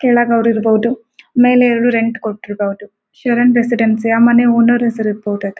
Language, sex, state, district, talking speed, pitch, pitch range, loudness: Kannada, female, Karnataka, Gulbarga, 150 wpm, 230 Hz, 215-240 Hz, -14 LUFS